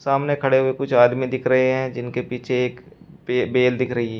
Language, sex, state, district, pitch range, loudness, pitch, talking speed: Hindi, male, Uttar Pradesh, Shamli, 125-130 Hz, -20 LUFS, 125 Hz, 215 wpm